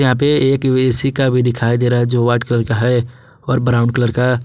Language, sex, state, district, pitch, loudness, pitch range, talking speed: Hindi, male, Jharkhand, Garhwa, 125 Hz, -15 LUFS, 120-130 Hz, 230 wpm